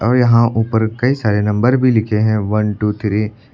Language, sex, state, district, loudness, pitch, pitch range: Hindi, male, Uttar Pradesh, Lucknow, -15 LUFS, 110 Hz, 105-120 Hz